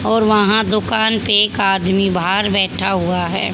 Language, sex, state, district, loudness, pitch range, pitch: Hindi, female, Haryana, Charkhi Dadri, -15 LUFS, 190-215 Hz, 200 Hz